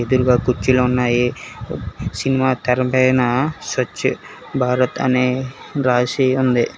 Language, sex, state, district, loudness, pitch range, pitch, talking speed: Telugu, male, Telangana, Hyderabad, -18 LUFS, 125-130 Hz, 125 Hz, 90 wpm